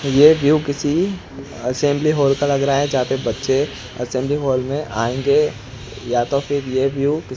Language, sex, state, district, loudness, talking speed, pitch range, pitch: Hindi, male, Gujarat, Gandhinagar, -18 LUFS, 180 wpm, 130-145 Hz, 140 Hz